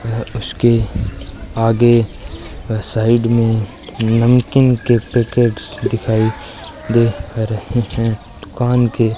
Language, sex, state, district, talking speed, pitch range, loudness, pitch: Hindi, male, Rajasthan, Bikaner, 105 wpm, 110-120 Hz, -16 LUFS, 115 Hz